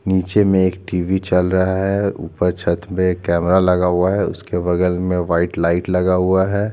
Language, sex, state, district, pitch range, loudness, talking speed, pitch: Hindi, male, Chhattisgarh, Jashpur, 90-95 Hz, -17 LUFS, 205 wpm, 90 Hz